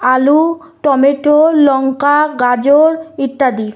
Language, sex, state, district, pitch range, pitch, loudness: Bengali, female, West Bengal, North 24 Parganas, 265-300 Hz, 285 Hz, -12 LUFS